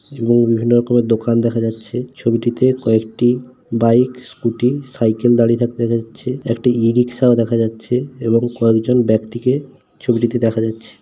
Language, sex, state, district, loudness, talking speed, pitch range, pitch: Bengali, male, West Bengal, Paschim Medinipur, -16 LUFS, 130 wpm, 115-125 Hz, 120 Hz